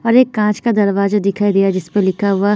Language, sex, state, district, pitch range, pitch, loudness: Hindi, female, Bihar, Patna, 195-210 Hz, 205 Hz, -15 LUFS